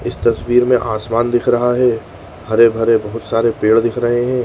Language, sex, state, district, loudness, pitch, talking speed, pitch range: Bhojpuri, male, Uttar Pradesh, Gorakhpur, -15 LUFS, 115 Hz, 200 wpm, 110-120 Hz